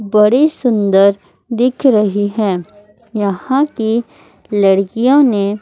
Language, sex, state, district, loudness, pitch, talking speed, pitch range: Hindi, female, Chhattisgarh, Raipur, -14 LUFS, 210 Hz, 95 wpm, 200-240 Hz